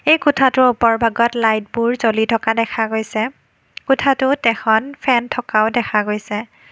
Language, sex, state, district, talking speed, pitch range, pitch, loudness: Assamese, female, Assam, Kamrup Metropolitan, 125 wpm, 220-255 Hz, 230 Hz, -17 LUFS